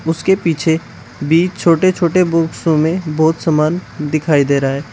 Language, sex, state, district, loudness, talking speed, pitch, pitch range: Hindi, male, Uttar Pradesh, Shamli, -15 LUFS, 160 wpm, 160 Hz, 150-170 Hz